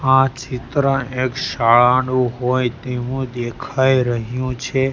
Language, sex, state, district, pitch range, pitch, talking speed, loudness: Gujarati, male, Gujarat, Gandhinagar, 125-130 Hz, 130 Hz, 110 wpm, -18 LUFS